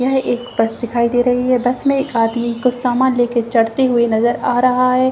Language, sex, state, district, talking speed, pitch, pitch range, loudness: Hindi, female, Jharkhand, Jamtara, 235 wpm, 245 Hz, 235-255 Hz, -16 LUFS